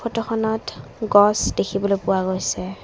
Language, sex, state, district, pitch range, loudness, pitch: Assamese, female, Assam, Kamrup Metropolitan, 185-220 Hz, -20 LUFS, 200 Hz